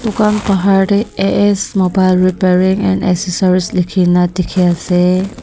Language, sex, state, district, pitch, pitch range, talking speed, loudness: Nagamese, female, Nagaland, Dimapur, 185 Hz, 180-195 Hz, 130 wpm, -13 LUFS